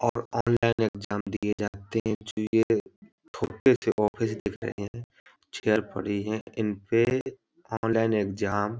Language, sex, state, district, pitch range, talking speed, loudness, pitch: Hindi, male, Uttar Pradesh, Hamirpur, 105-115 Hz, 125 wpm, -28 LUFS, 110 Hz